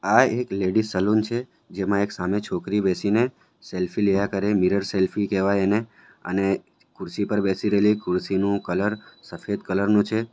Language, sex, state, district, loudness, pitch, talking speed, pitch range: Gujarati, male, Gujarat, Valsad, -23 LUFS, 100 Hz, 170 wpm, 95-105 Hz